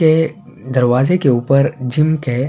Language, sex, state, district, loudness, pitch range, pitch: Urdu, male, Uttar Pradesh, Budaun, -15 LUFS, 125-160 Hz, 135 Hz